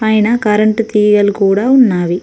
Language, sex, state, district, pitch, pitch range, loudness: Telugu, female, Telangana, Mahabubabad, 210 Hz, 200-220 Hz, -11 LUFS